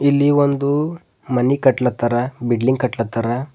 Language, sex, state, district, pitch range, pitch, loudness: Kannada, male, Karnataka, Bidar, 120-140 Hz, 130 Hz, -18 LUFS